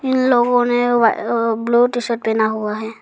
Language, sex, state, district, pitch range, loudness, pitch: Hindi, female, Arunachal Pradesh, Lower Dibang Valley, 220-245 Hz, -17 LUFS, 235 Hz